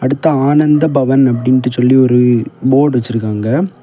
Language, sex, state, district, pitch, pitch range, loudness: Tamil, male, Tamil Nadu, Kanyakumari, 130 Hz, 125-140 Hz, -12 LUFS